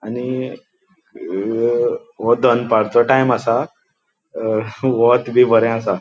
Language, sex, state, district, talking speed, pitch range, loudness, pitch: Konkani, male, Goa, North and South Goa, 120 wpm, 115-180 Hz, -17 LUFS, 125 Hz